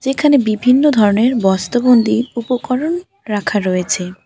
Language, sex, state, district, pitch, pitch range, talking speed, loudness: Bengali, female, West Bengal, Alipurduar, 240 Hz, 205-260 Hz, 100 wpm, -15 LUFS